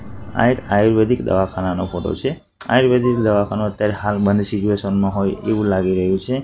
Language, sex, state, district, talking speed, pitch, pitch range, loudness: Gujarati, male, Gujarat, Gandhinagar, 170 wpm, 105 Hz, 95-110 Hz, -18 LUFS